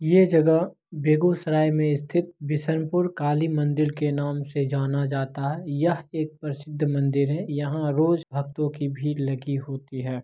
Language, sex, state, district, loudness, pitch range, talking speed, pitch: Maithili, male, Bihar, Begusarai, -25 LUFS, 140-160 Hz, 160 wpm, 150 Hz